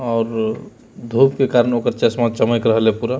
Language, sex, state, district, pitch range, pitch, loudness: Hindi, male, Bihar, Jamui, 115-120 Hz, 115 Hz, -17 LUFS